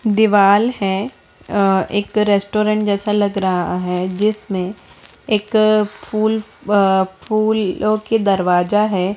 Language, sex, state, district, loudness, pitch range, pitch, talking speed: Hindi, female, Bihar, Begusarai, -17 LUFS, 195-215 Hz, 205 Hz, 110 wpm